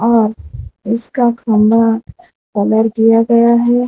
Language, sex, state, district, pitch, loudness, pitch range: Hindi, female, Gujarat, Valsad, 230 Hz, -13 LUFS, 220-235 Hz